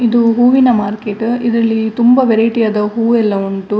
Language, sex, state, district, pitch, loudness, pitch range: Kannada, female, Karnataka, Dakshina Kannada, 230 Hz, -13 LUFS, 210-235 Hz